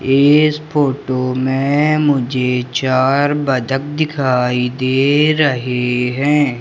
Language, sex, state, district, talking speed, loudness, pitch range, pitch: Hindi, male, Madhya Pradesh, Umaria, 90 wpm, -15 LUFS, 125-145 Hz, 135 Hz